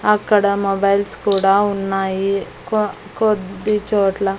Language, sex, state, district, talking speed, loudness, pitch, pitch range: Telugu, female, Andhra Pradesh, Annamaya, 80 wpm, -18 LUFS, 200 Hz, 195-210 Hz